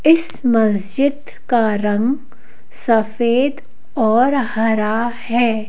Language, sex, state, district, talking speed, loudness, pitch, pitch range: Hindi, female, Madhya Pradesh, Bhopal, 85 wpm, -17 LUFS, 235 Hz, 220-265 Hz